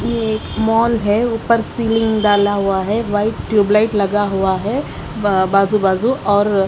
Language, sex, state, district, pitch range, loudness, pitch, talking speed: Hindi, female, Haryana, Charkhi Dadri, 200-225 Hz, -16 LUFS, 210 Hz, 145 wpm